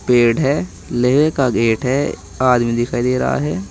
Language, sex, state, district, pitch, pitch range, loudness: Hindi, male, Uttar Pradesh, Saharanpur, 125 Hz, 115-130 Hz, -17 LUFS